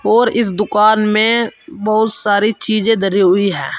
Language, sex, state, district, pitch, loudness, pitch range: Hindi, male, Uttar Pradesh, Saharanpur, 215 Hz, -14 LUFS, 205-225 Hz